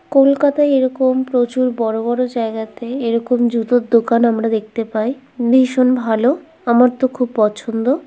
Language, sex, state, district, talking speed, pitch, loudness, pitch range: Bengali, female, West Bengal, Kolkata, 135 wpm, 245 Hz, -16 LUFS, 230-260 Hz